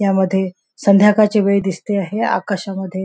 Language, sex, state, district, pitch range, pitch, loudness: Marathi, female, Maharashtra, Nagpur, 190-210 Hz, 200 Hz, -16 LUFS